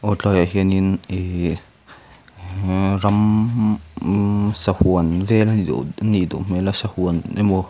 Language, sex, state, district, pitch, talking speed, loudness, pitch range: Mizo, male, Mizoram, Aizawl, 95 Hz, 110 wpm, -19 LUFS, 90-105 Hz